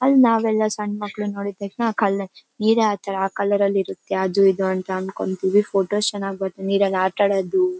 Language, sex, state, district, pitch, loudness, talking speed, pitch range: Kannada, female, Karnataka, Bellary, 200 Hz, -21 LUFS, 175 wpm, 195-210 Hz